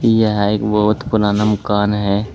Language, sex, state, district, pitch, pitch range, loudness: Hindi, male, Uttar Pradesh, Saharanpur, 105 Hz, 105-110 Hz, -16 LUFS